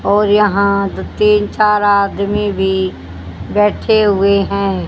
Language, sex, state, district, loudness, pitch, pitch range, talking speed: Hindi, female, Haryana, Charkhi Dadri, -14 LUFS, 200 Hz, 195-210 Hz, 125 wpm